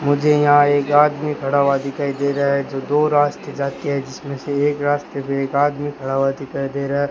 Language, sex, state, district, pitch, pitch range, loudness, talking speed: Hindi, male, Rajasthan, Bikaner, 140 Hz, 140-145 Hz, -19 LUFS, 235 wpm